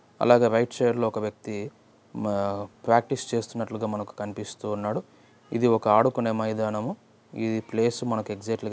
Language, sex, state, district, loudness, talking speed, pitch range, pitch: Telugu, male, Andhra Pradesh, Anantapur, -26 LUFS, 140 wpm, 105-115 Hz, 110 Hz